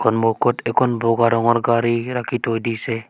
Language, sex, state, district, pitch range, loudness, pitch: Assamese, female, Assam, Sonitpur, 115-120 Hz, -19 LUFS, 115 Hz